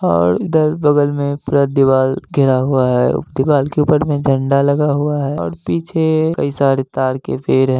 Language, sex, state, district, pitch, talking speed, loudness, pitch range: Hindi, male, Bihar, Gaya, 140 Hz, 190 wpm, -15 LUFS, 130-150 Hz